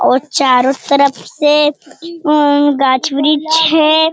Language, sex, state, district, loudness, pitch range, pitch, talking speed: Hindi, female, Bihar, Jamui, -12 LUFS, 280-310 Hz, 295 Hz, 115 wpm